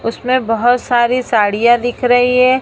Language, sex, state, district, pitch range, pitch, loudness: Hindi, female, Maharashtra, Mumbai Suburban, 235-250 Hz, 245 Hz, -13 LUFS